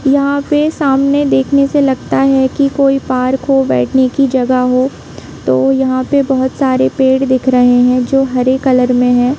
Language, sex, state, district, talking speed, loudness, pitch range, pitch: Hindi, female, Jharkhand, Jamtara, 190 wpm, -12 LUFS, 250-275 Hz, 265 Hz